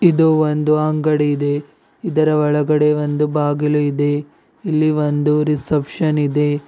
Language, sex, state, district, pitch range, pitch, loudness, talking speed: Kannada, male, Karnataka, Bidar, 145-155 Hz, 150 Hz, -17 LUFS, 115 wpm